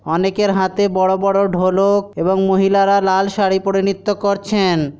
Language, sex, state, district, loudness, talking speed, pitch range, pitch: Bengali, male, West Bengal, Dakshin Dinajpur, -16 LUFS, 145 wpm, 190-200 Hz, 195 Hz